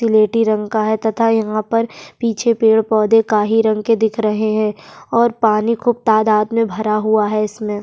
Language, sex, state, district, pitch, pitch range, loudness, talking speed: Hindi, female, Bihar, Kishanganj, 220 Hz, 215-225 Hz, -16 LUFS, 190 wpm